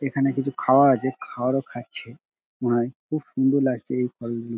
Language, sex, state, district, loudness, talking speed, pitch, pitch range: Bengali, male, West Bengal, Dakshin Dinajpur, -23 LUFS, 185 wpm, 130 Hz, 120-135 Hz